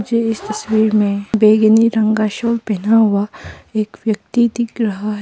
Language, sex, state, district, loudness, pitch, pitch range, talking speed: Hindi, female, Arunachal Pradesh, Papum Pare, -16 LUFS, 215 Hz, 210-225 Hz, 170 wpm